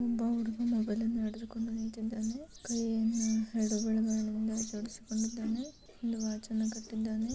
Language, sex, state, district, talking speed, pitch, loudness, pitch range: Kannada, female, Karnataka, Bellary, 115 wpm, 225 Hz, -34 LUFS, 220-230 Hz